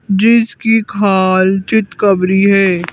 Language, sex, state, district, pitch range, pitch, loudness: Hindi, female, Madhya Pradesh, Bhopal, 190-220 Hz, 200 Hz, -12 LUFS